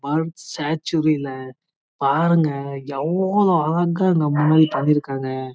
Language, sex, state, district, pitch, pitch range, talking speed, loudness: Tamil, male, Karnataka, Chamarajanagar, 155 Hz, 140-170 Hz, 65 wpm, -20 LUFS